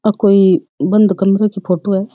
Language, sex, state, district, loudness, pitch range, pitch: Rajasthani, female, Rajasthan, Churu, -13 LUFS, 195-210 Hz, 195 Hz